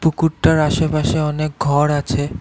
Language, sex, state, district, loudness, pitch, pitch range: Bengali, male, Assam, Kamrup Metropolitan, -17 LUFS, 155 Hz, 145-160 Hz